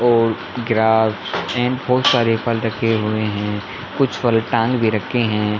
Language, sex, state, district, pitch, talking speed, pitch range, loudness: Hindi, male, Chhattisgarh, Bilaspur, 115 Hz, 170 wpm, 110-120 Hz, -18 LUFS